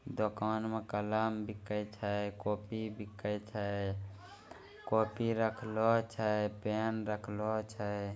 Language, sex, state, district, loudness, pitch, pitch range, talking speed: Angika, male, Bihar, Begusarai, -36 LUFS, 105 Hz, 105-110 Hz, 105 wpm